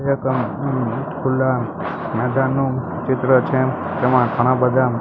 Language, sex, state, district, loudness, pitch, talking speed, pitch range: Gujarati, male, Gujarat, Gandhinagar, -19 LUFS, 130 Hz, 95 wpm, 125-135 Hz